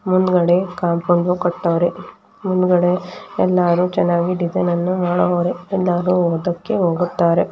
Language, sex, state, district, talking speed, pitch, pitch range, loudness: Kannada, female, Karnataka, Dakshina Kannada, 95 wpm, 180 Hz, 175-180 Hz, -18 LUFS